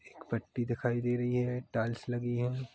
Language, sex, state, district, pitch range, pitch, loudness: Hindi, male, Chhattisgarh, Kabirdham, 120-125 Hz, 120 Hz, -34 LUFS